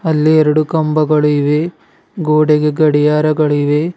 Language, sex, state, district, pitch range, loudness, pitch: Kannada, male, Karnataka, Bidar, 150-155 Hz, -13 LUFS, 155 Hz